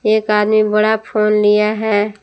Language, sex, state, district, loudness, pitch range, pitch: Hindi, female, Jharkhand, Palamu, -14 LUFS, 210-215 Hz, 215 Hz